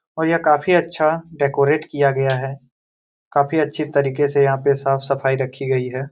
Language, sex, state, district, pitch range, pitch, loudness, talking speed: Hindi, male, Jharkhand, Jamtara, 135-155 Hz, 140 Hz, -19 LUFS, 185 wpm